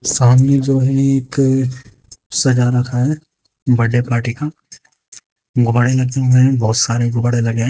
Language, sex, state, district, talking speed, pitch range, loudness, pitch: Hindi, female, Haryana, Jhajjar, 150 wpm, 120-135 Hz, -15 LUFS, 125 Hz